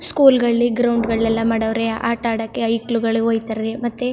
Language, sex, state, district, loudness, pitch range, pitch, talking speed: Kannada, female, Karnataka, Chamarajanagar, -18 LUFS, 225-240 Hz, 230 Hz, 175 wpm